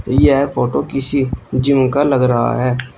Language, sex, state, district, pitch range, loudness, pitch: Hindi, male, Uttar Pradesh, Shamli, 125-140 Hz, -15 LUFS, 130 Hz